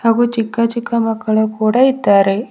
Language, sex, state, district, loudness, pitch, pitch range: Kannada, female, Karnataka, Bidar, -15 LUFS, 225 Hz, 215-235 Hz